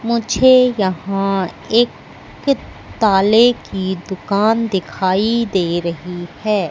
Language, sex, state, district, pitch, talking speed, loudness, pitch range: Hindi, female, Madhya Pradesh, Katni, 200 Hz, 80 wpm, -16 LUFS, 185-230 Hz